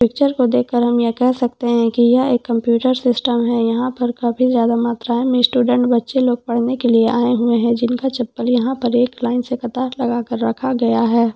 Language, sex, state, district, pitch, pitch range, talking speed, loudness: Hindi, female, Jharkhand, Sahebganj, 240 Hz, 235-250 Hz, 210 wpm, -17 LUFS